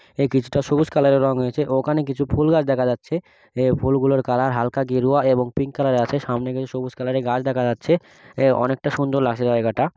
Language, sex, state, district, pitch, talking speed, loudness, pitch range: Bengali, male, West Bengal, Kolkata, 135 Hz, 195 wpm, -20 LUFS, 125-140 Hz